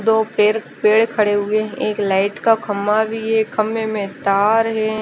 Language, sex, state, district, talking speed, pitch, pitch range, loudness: Hindi, female, Chandigarh, Chandigarh, 190 wpm, 215 Hz, 205-220 Hz, -18 LUFS